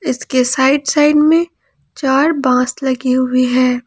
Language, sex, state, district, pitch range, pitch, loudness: Hindi, female, Jharkhand, Ranchi, 255-295 Hz, 265 Hz, -14 LUFS